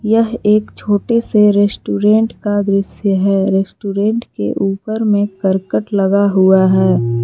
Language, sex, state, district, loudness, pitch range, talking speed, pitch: Hindi, female, Jharkhand, Palamu, -14 LUFS, 195-210 Hz, 135 wpm, 200 Hz